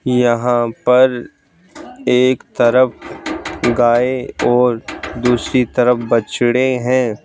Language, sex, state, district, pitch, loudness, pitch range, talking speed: Hindi, male, Madhya Pradesh, Bhopal, 125 Hz, -15 LUFS, 120-125 Hz, 85 wpm